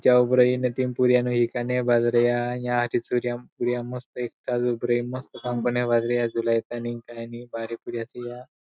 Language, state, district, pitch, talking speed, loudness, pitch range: Bhili, Maharashtra, Dhule, 120 Hz, 95 wpm, -25 LUFS, 120-125 Hz